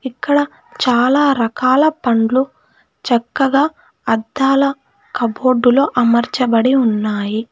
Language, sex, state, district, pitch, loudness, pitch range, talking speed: Telugu, female, Telangana, Hyderabad, 255 Hz, -15 LUFS, 235-275 Hz, 70 wpm